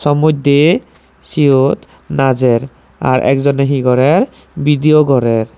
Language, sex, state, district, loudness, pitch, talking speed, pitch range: Chakma, male, Tripura, Dhalai, -13 LUFS, 140 Hz, 95 wpm, 130-150 Hz